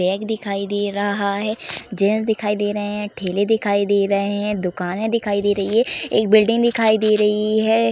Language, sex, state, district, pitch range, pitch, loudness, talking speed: Hindi, female, Uttar Pradesh, Jalaun, 200-220 Hz, 205 Hz, -19 LUFS, 195 wpm